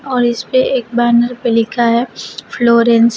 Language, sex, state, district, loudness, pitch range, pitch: Hindi, female, Uttar Pradesh, Shamli, -13 LUFS, 235-250 Hz, 240 Hz